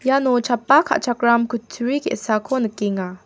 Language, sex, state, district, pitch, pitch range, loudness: Garo, female, Meghalaya, West Garo Hills, 240 Hz, 220-265 Hz, -19 LUFS